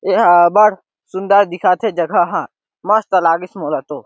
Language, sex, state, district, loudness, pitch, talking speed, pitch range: Chhattisgarhi, male, Chhattisgarh, Sarguja, -14 LUFS, 185 Hz, 165 wpm, 175-205 Hz